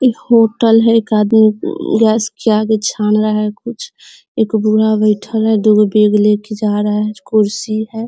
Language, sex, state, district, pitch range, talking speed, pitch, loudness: Hindi, female, Bihar, Sitamarhi, 210-220 Hz, 200 wpm, 215 Hz, -13 LUFS